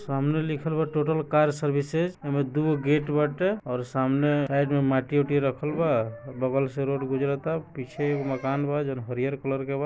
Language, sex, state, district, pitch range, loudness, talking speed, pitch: Bhojpuri, male, Bihar, East Champaran, 135-150 Hz, -26 LUFS, 195 wpm, 145 Hz